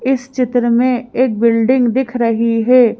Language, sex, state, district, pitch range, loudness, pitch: Hindi, female, Madhya Pradesh, Bhopal, 235-255 Hz, -14 LUFS, 245 Hz